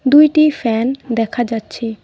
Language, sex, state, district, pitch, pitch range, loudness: Bengali, female, West Bengal, Cooch Behar, 240 Hz, 225-285 Hz, -15 LUFS